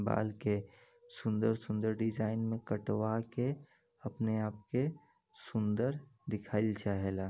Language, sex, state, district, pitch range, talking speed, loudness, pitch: Bhojpuri, male, Uttar Pradesh, Gorakhpur, 105-125 Hz, 105 wpm, -36 LUFS, 110 Hz